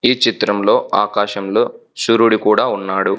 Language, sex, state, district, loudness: Telugu, male, Telangana, Hyderabad, -15 LUFS